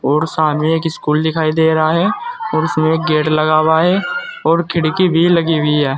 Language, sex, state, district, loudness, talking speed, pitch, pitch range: Hindi, male, Uttar Pradesh, Saharanpur, -15 LUFS, 200 wpm, 160 Hz, 155-170 Hz